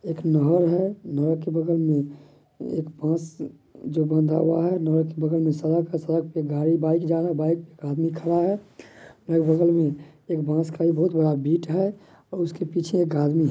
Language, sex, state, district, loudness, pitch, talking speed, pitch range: Maithili, male, Bihar, Madhepura, -23 LUFS, 165 Hz, 205 wpm, 155-170 Hz